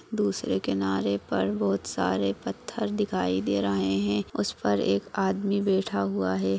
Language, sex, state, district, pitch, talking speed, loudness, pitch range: Hindi, female, Bihar, Jahanabad, 100 Hz, 155 wpm, -27 LUFS, 95-105 Hz